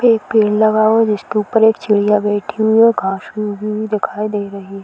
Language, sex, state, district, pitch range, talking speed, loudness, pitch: Hindi, female, Uttar Pradesh, Varanasi, 205-220 Hz, 245 wpm, -15 LUFS, 215 Hz